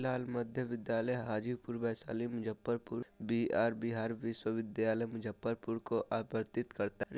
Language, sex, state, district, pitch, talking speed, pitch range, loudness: Bajjika, male, Bihar, Vaishali, 115 Hz, 115 wpm, 110-120 Hz, -38 LUFS